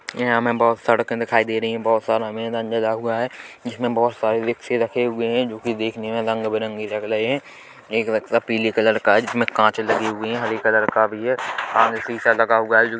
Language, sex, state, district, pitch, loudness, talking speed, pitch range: Hindi, male, Chhattisgarh, Korba, 115 Hz, -20 LUFS, 235 wpm, 110-115 Hz